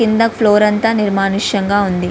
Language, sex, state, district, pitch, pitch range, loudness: Telugu, female, Andhra Pradesh, Visakhapatnam, 210 Hz, 195-225 Hz, -14 LUFS